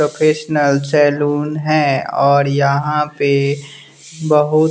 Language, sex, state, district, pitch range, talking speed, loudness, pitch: Hindi, male, Bihar, West Champaran, 140-155 Hz, 90 wpm, -15 LUFS, 150 Hz